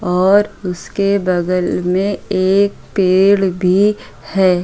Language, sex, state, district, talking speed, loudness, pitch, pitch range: Hindi, female, Uttar Pradesh, Hamirpur, 105 wpm, -15 LUFS, 190 Hz, 180-200 Hz